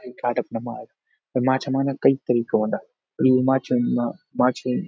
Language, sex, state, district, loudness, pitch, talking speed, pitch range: Garhwali, male, Uttarakhand, Uttarkashi, -22 LUFS, 125 Hz, 160 wpm, 120-130 Hz